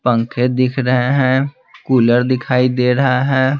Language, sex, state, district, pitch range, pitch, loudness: Hindi, male, Bihar, Patna, 125-130 Hz, 125 Hz, -15 LUFS